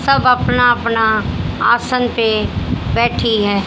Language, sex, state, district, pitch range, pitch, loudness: Hindi, female, Haryana, Jhajjar, 220-245 Hz, 230 Hz, -15 LUFS